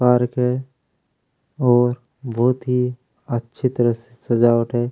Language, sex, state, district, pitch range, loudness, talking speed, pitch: Hindi, male, Chhattisgarh, Kabirdham, 120-130 Hz, -20 LUFS, 120 wpm, 125 Hz